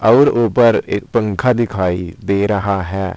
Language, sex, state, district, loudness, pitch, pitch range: Hindi, male, Uttar Pradesh, Saharanpur, -15 LUFS, 100 Hz, 95-115 Hz